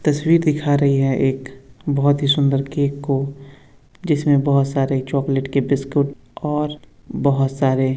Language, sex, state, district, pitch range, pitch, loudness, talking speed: Hindi, male, Uttar Pradesh, Budaun, 135-145 Hz, 140 Hz, -19 LUFS, 150 wpm